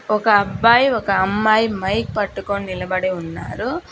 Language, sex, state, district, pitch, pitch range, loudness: Telugu, female, Telangana, Hyderabad, 210 Hz, 190-225 Hz, -18 LUFS